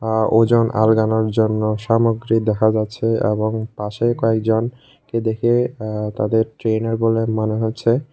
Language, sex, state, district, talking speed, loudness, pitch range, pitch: Bengali, male, Tripura, West Tripura, 135 wpm, -19 LUFS, 110-115 Hz, 110 Hz